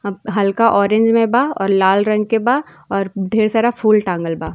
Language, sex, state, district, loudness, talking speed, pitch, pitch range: Bhojpuri, female, Uttar Pradesh, Ghazipur, -16 LUFS, 210 wpm, 215 Hz, 195-225 Hz